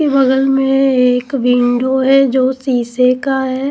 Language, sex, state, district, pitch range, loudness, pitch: Hindi, female, Punjab, Pathankot, 250-270 Hz, -13 LUFS, 260 Hz